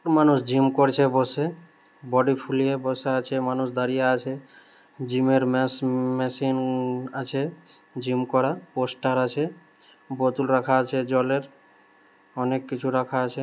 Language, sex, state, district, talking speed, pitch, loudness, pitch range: Bengali, male, West Bengal, Malda, 115 wpm, 130 Hz, -24 LUFS, 130-135 Hz